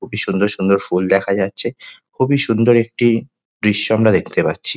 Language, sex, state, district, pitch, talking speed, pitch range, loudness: Bengali, male, West Bengal, Jalpaiguri, 105 Hz, 165 wpm, 100-115 Hz, -15 LUFS